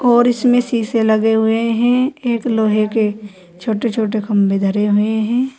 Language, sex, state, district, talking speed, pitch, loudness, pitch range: Hindi, female, Uttar Pradesh, Saharanpur, 160 wpm, 225 Hz, -16 LUFS, 215-240 Hz